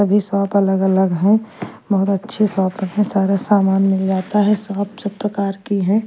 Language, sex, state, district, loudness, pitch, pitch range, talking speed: Hindi, female, Punjab, Kapurthala, -17 LUFS, 200 Hz, 190-210 Hz, 190 wpm